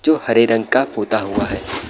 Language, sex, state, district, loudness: Hindi, male, Bihar, Saharsa, -17 LUFS